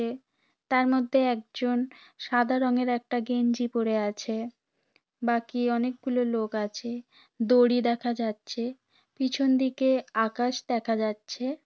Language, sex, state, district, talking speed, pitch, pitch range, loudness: Bengali, female, West Bengal, Dakshin Dinajpur, 115 wpm, 245 Hz, 235-255 Hz, -27 LUFS